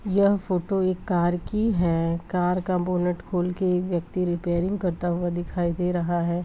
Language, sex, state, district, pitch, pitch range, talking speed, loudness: Hindi, female, Bihar, Purnia, 180 Hz, 175-185 Hz, 175 wpm, -25 LUFS